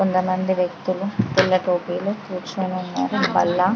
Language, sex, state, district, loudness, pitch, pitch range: Telugu, female, Andhra Pradesh, Krishna, -22 LUFS, 185 Hz, 180-190 Hz